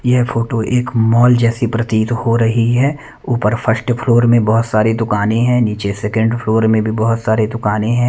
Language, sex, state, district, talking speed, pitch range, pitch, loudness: Hindi, male, Punjab, Kapurthala, 195 wpm, 110-120 Hz, 115 Hz, -15 LUFS